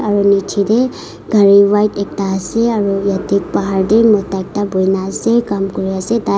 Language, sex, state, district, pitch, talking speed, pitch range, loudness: Nagamese, female, Nagaland, Kohima, 200 Hz, 180 wpm, 195-210 Hz, -14 LUFS